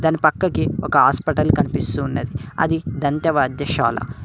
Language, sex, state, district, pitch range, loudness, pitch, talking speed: Telugu, male, Telangana, Mahabubabad, 130-160 Hz, -19 LUFS, 145 Hz, 125 wpm